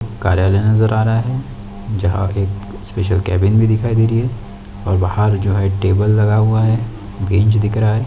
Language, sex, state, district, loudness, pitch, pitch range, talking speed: Hindi, male, Chhattisgarh, Sukma, -16 LUFS, 105 Hz, 100-110 Hz, 195 wpm